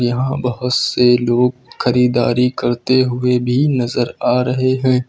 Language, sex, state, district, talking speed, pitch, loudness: Hindi, male, Uttar Pradesh, Lucknow, 140 wpm, 125 Hz, -16 LUFS